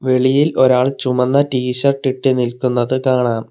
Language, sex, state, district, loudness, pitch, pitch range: Malayalam, male, Kerala, Kollam, -16 LUFS, 130 Hz, 125-135 Hz